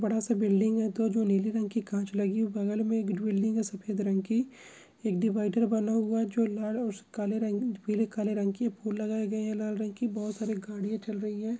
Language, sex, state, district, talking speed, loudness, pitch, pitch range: Hindi, female, Andhra Pradesh, Krishna, 235 wpm, -30 LUFS, 215 Hz, 205-225 Hz